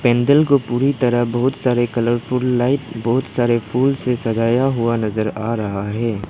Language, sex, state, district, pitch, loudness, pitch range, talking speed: Hindi, male, Arunachal Pradesh, Lower Dibang Valley, 120 Hz, -18 LUFS, 115-130 Hz, 170 wpm